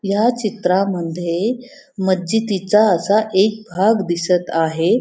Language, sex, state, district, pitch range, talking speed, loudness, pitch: Marathi, female, Maharashtra, Pune, 175-220 Hz, 95 wpm, -18 LUFS, 195 Hz